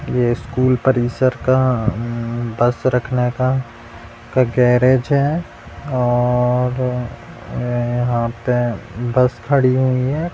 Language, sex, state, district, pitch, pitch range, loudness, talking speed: Hindi, male, Bihar, Purnia, 125 Hz, 120-130 Hz, -18 LUFS, 100 wpm